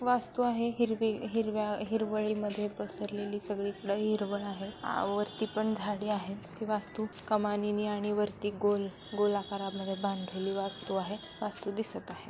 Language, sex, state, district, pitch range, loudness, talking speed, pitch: Marathi, female, Maharashtra, Solapur, 200-215 Hz, -34 LUFS, 135 wpm, 210 Hz